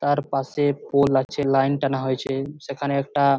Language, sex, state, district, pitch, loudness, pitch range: Bengali, male, West Bengal, Purulia, 140 Hz, -23 LUFS, 135-145 Hz